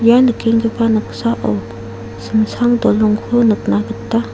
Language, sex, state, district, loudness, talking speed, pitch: Garo, female, Meghalaya, South Garo Hills, -15 LUFS, 95 wpm, 215 Hz